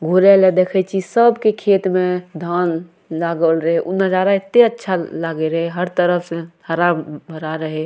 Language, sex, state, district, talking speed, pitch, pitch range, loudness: Maithili, female, Bihar, Madhepura, 175 wpm, 175 Hz, 165-190 Hz, -17 LUFS